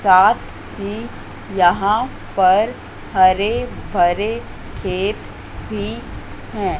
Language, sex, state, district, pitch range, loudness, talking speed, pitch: Hindi, female, Madhya Pradesh, Katni, 175-210 Hz, -18 LUFS, 80 wpm, 190 Hz